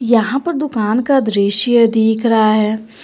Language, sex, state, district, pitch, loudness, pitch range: Hindi, female, Jharkhand, Garhwa, 225 Hz, -14 LUFS, 215-245 Hz